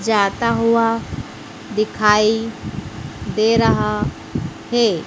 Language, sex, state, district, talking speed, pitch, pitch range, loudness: Hindi, female, Madhya Pradesh, Dhar, 70 wpm, 225 Hz, 215-230 Hz, -18 LUFS